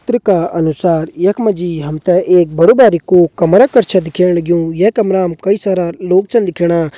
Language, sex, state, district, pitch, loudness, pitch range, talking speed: Hindi, male, Uttarakhand, Uttarkashi, 180 Hz, -12 LUFS, 170-195 Hz, 205 wpm